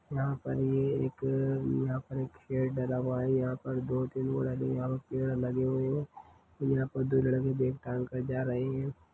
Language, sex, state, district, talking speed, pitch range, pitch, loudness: Hindi, male, Chhattisgarh, Kabirdham, 205 wpm, 130-135 Hz, 130 Hz, -32 LUFS